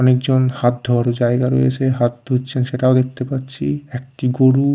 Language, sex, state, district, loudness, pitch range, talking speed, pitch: Bengali, male, Odisha, Khordha, -18 LUFS, 125-130 Hz, 150 wpm, 130 Hz